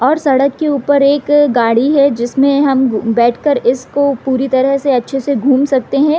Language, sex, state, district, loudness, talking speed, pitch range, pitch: Hindi, female, Bihar, Gopalganj, -12 LUFS, 205 wpm, 255-285 Hz, 275 Hz